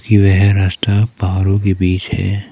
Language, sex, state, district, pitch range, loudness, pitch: Hindi, male, Arunachal Pradesh, Papum Pare, 95-105 Hz, -14 LUFS, 100 Hz